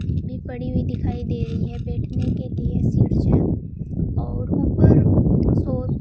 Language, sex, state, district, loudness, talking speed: Hindi, female, Rajasthan, Bikaner, -21 LUFS, 150 wpm